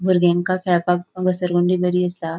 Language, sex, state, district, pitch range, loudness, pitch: Konkani, female, Goa, North and South Goa, 175-185 Hz, -19 LUFS, 180 Hz